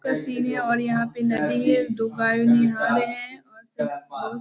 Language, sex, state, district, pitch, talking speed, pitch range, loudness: Hindi, female, Bihar, Jahanabad, 235 Hz, 215 wpm, 225-250 Hz, -23 LUFS